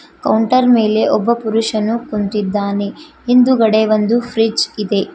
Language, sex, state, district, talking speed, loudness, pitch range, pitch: Kannada, female, Karnataka, Koppal, 105 wpm, -15 LUFS, 210-235 Hz, 220 Hz